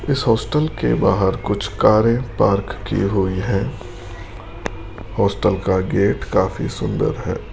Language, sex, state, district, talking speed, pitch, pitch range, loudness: Hindi, male, Rajasthan, Jaipur, 125 wpm, 110 Hz, 95-115 Hz, -19 LUFS